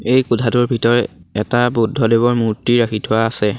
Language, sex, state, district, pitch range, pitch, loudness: Assamese, male, Assam, Sonitpur, 110-120 Hz, 115 Hz, -16 LUFS